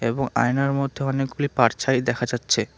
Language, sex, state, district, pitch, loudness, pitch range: Bengali, male, West Bengal, Alipurduar, 135 Hz, -23 LUFS, 120-140 Hz